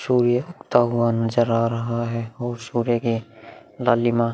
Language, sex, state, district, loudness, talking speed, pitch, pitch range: Hindi, male, Bihar, Vaishali, -22 LUFS, 150 wpm, 120 Hz, 115-120 Hz